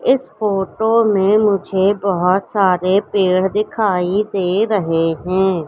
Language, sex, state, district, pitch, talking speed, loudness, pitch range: Hindi, female, Madhya Pradesh, Katni, 195 Hz, 115 wpm, -16 LUFS, 185-210 Hz